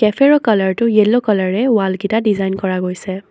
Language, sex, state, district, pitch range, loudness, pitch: Assamese, female, Assam, Sonitpur, 190-225 Hz, -15 LUFS, 210 Hz